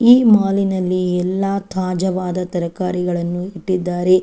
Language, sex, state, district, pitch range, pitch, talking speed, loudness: Kannada, female, Karnataka, Chamarajanagar, 180-195 Hz, 185 Hz, 100 wpm, -18 LUFS